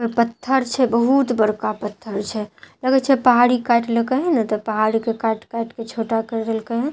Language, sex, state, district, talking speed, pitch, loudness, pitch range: Maithili, female, Bihar, Katihar, 190 wpm, 230 Hz, -20 LUFS, 220-250 Hz